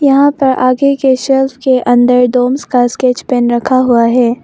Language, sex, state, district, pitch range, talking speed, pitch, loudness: Hindi, female, Arunachal Pradesh, Longding, 245-270 Hz, 190 wpm, 255 Hz, -11 LUFS